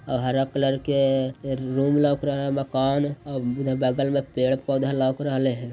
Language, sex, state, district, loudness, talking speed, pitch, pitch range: Magahi, male, Bihar, Jahanabad, -24 LUFS, 190 wpm, 135 Hz, 130-140 Hz